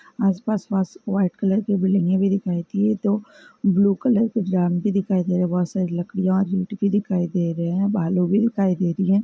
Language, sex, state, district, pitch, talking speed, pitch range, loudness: Hindi, female, Karnataka, Belgaum, 195 Hz, 220 wpm, 180-205 Hz, -21 LUFS